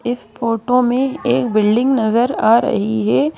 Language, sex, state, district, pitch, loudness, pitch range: Hindi, female, Madhya Pradesh, Bhopal, 240 Hz, -16 LUFS, 220-250 Hz